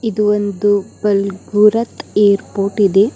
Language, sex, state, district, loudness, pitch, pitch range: Kannada, female, Karnataka, Bidar, -15 LUFS, 205 Hz, 200-210 Hz